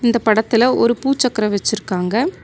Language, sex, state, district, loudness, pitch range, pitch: Tamil, female, Tamil Nadu, Nilgiris, -17 LUFS, 215-250 Hz, 230 Hz